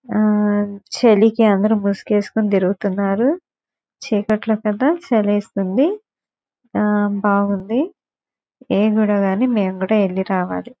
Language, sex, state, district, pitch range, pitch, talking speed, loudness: Telugu, male, Andhra Pradesh, Guntur, 200-230 Hz, 210 Hz, 80 wpm, -18 LUFS